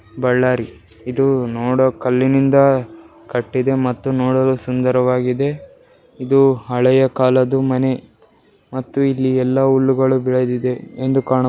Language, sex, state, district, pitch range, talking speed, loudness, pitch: Kannada, male, Karnataka, Bellary, 125-135 Hz, 95 wpm, -17 LUFS, 130 Hz